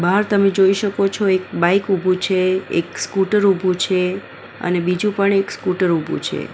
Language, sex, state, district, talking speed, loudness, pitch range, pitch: Gujarati, female, Gujarat, Valsad, 185 wpm, -18 LUFS, 185-200 Hz, 190 Hz